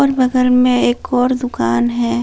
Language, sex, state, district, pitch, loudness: Hindi, female, Jharkhand, Palamu, 250 Hz, -15 LUFS